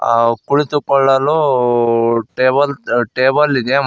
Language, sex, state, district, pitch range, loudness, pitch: Kannada, male, Karnataka, Koppal, 115-140 Hz, -14 LUFS, 130 Hz